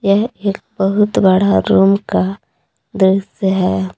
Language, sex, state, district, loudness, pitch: Hindi, female, Jharkhand, Palamu, -15 LUFS, 190 Hz